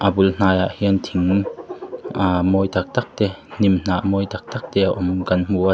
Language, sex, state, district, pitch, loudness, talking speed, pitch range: Mizo, male, Mizoram, Aizawl, 95 Hz, -20 LUFS, 230 wpm, 90-100 Hz